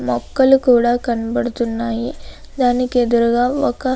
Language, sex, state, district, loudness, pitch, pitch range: Telugu, female, Andhra Pradesh, Anantapur, -17 LUFS, 240 Hz, 235-250 Hz